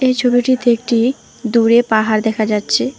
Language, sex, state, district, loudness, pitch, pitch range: Bengali, female, West Bengal, Alipurduar, -15 LUFS, 235 Hz, 220-250 Hz